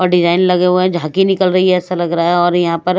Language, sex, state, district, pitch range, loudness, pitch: Hindi, female, Odisha, Malkangiri, 175-185 Hz, -13 LUFS, 180 Hz